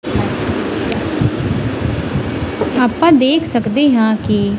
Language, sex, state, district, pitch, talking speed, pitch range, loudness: Punjabi, female, Punjab, Kapurthala, 250 Hz, 65 wpm, 220-290 Hz, -15 LUFS